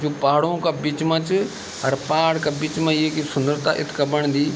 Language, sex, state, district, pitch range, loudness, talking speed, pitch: Garhwali, male, Uttarakhand, Tehri Garhwal, 145-160 Hz, -21 LUFS, 195 wpm, 150 Hz